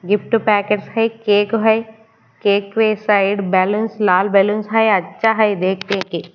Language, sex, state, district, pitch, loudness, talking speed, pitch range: Hindi, female, Haryana, Charkhi Dadri, 210 Hz, -16 LUFS, 160 wpm, 200-220 Hz